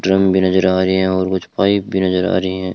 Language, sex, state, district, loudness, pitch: Hindi, male, Rajasthan, Bikaner, -16 LUFS, 95 Hz